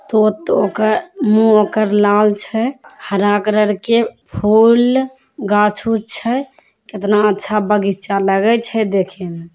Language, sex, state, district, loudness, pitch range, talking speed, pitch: Hindi, female, Bihar, Begusarai, -15 LUFS, 205-230 Hz, 120 wpm, 210 Hz